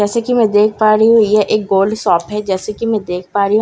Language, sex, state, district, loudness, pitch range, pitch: Hindi, female, Bihar, Katihar, -14 LUFS, 200-220 Hz, 210 Hz